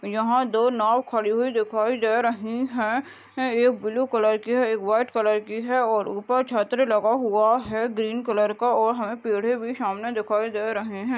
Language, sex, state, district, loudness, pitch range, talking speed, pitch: Hindi, female, Goa, North and South Goa, -23 LUFS, 215-245 Hz, 200 wpm, 225 Hz